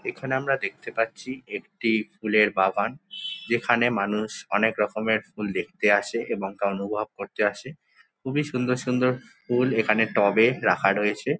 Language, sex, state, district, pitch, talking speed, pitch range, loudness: Bengali, male, West Bengal, Jhargram, 110 Hz, 135 wpm, 105-125 Hz, -25 LUFS